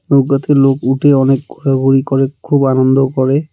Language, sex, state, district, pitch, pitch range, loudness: Bengali, male, West Bengal, Alipurduar, 135 Hz, 135-140 Hz, -12 LUFS